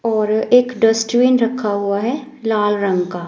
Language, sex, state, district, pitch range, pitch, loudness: Hindi, female, Himachal Pradesh, Shimla, 205-245 Hz, 225 Hz, -16 LUFS